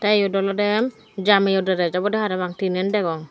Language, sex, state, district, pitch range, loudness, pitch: Chakma, female, Tripura, Dhalai, 185-210 Hz, -21 LUFS, 195 Hz